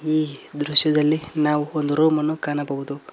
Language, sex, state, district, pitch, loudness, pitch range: Kannada, male, Karnataka, Koppal, 150 Hz, -20 LUFS, 145-155 Hz